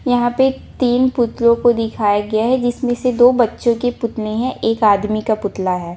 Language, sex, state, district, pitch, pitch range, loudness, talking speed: Hindi, female, Bihar, Samastipur, 235 Hz, 215-245 Hz, -16 LUFS, 200 wpm